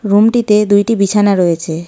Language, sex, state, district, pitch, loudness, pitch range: Bengali, female, West Bengal, Darjeeling, 205 Hz, -12 LUFS, 185-210 Hz